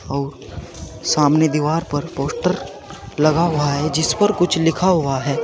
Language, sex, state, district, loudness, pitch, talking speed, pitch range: Hindi, male, Uttar Pradesh, Saharanpur, -18 LUFS, 150 Hz, 155 wpm, 140-165 Hz